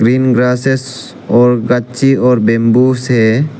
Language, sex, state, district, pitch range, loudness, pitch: Hindi, male, Arunachal Pradesh, Lower Dibang Valley, 120-130 Hz, -11 LUFS, 125 Hz